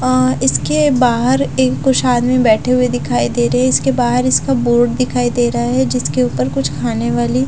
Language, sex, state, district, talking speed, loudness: Hindi, female, Bihar, Katihar, 200 wpm, -14 LUFS